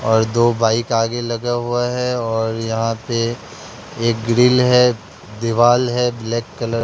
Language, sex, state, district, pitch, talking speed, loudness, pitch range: Hindi, male, Bihar, Katihar, 115 Hz, 160 wpm, -17 LUFS, 115-120 Hz